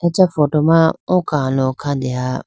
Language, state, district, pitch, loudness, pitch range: Idu Mishmi, Arunachal Pradesh, Lower Dibang Valley, 150 Hz, -16 LUFS, 130-165 Hz